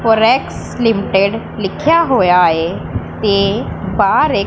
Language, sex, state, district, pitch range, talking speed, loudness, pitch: Punjabi, female, Punjab, Pathankot, 190-230 Hz, 105 wpm, -14 LUFS, 205 Hz